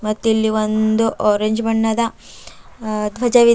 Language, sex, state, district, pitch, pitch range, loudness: Kannada, female, Karnataka, Bidar, 220 Hz, 215-230 Hz, -18 LUFS